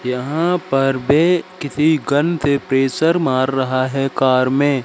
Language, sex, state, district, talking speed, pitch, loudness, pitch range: Hindi, male, Madhya Pradesh, Katni, 150 wpm, 135 Hz, -17 LUFS, 130-155 Hz